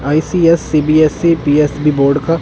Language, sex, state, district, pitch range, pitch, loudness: Hindi, male, Punjab, Kapurthala, 145-165 Hz, 150 Hz, -12 LUFS